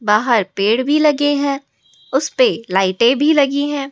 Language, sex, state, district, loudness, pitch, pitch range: Hindi, female, Rajasthan, Jaipur, -16 LUFS, 275 Hz, 225-290 Hz